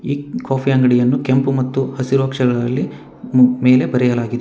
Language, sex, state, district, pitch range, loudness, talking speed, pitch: Kannada, male, Karnataka, Bangalore, 125-135 Hz, -16 LUFS, 120 wpm, 130 Hz